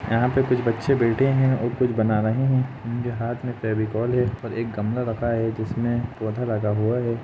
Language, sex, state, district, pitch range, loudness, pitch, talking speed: Hindi, male, Jharkhand, Jamtara, 110-125 Hz, -23 LUFS, 120 Hz, 215 wpm